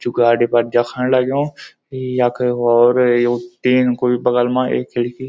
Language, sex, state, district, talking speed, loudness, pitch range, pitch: Garhwali, male, Uttarakhand, Uttarkashi, 160 wpm, -16 LUFS, 120-125 Hz, 125 Hz